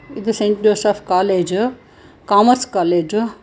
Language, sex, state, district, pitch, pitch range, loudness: Kannada, female, Karnataka, Bangalore, 210 Hz, 190-225 Hz, -16 LUFS